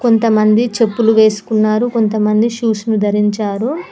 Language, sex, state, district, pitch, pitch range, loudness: Telugu, female, Telangana, Mahabubabad, 220 Hz, 215-230 Hz, -14 LUFS